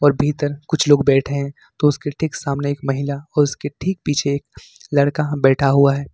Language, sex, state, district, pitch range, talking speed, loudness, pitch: Hindi, male, Jharkhand, Ranchi, 140-145 Hz, 195 wpm, -19 LUFS, 145 Hz